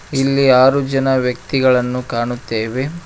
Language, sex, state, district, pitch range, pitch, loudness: Kannada, male, Karnataka, Koppal, 125-135 Hz, 130 Hz, -16 LUFS